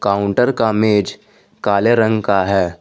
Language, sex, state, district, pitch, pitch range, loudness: Hindi, male, Jharkhand, Garhwa, 105 Hz, 100-110 Hz, -16 LUFS